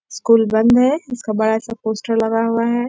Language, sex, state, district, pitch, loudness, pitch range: Hindi, female, Bihar, Bhagalpur, 230 Hz, -17 LUFS, 220-240 Hz